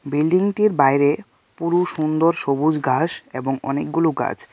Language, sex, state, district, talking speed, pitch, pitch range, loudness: Bengali, male, Tripura, West Tripura, 120 wpm, 155 Hz, 140-165 Hz, -20 LUFS